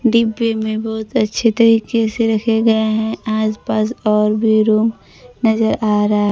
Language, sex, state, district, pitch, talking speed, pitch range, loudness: Hindi, female, Bihar, Kaimur, 220 Hz, 160 wpm, 215-225 Hz, -16 LUFS